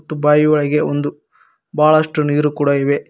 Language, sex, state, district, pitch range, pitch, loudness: Kannada, male, Karnataka, Koppal, 145-150 Hz, 150 Hz, -15 LUFS